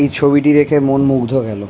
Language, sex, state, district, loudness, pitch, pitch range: Bengali, male, West Bengal, Malda, -13 LUFS, 140 Hz, 130-145 Hz